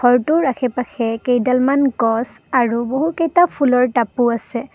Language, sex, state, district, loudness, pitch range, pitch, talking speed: Assamese, female, Assam, Kamrup Metropolitan, -17 LUFS, 235-275 Hz, 250 Hz, 115 wpm